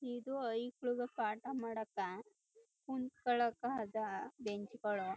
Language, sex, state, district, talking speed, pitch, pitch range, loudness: Kannada, female, Karnataka, Chamarajanagar, 95 wpm, 240 Hz, 215-255 Hz, -41 LUFS